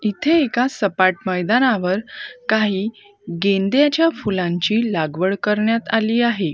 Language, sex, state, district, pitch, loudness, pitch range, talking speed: Marathi, female, Maharashtra, Gondia, 215 Hz, -19 LUFS, 190-240 Hz, 100 wpm